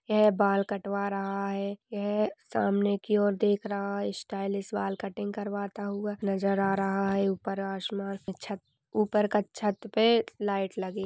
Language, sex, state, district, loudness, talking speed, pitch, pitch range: Hindi, female, Chhattisgarh, Balrampur, -29 LUFS, 170 wpm, 200 Hz, 195-210 Hz